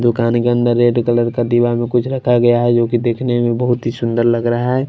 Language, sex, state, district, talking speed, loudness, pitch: Hindi, male, Punjab, Kapurthala, 255 wpm, -15 LUFS, 120 Hz